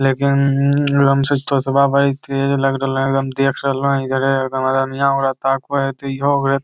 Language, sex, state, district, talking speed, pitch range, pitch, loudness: Magahi, male, Bihar, Lakhisarai, 135 wpm, 135-140 Hz, 135 Hz, -17 LUFS